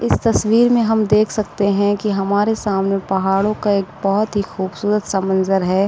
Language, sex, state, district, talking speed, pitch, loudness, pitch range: Hindi, female, Uttar Pradesh, Budaun, 195 wpm, 200 Hz, -17 LUFS, 195-210 Hz